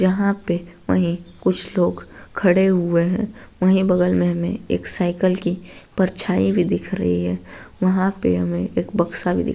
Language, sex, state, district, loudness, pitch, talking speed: Hindi, female, Bihar, Araria, -19 LUFS, 180 Hz, 175 wpm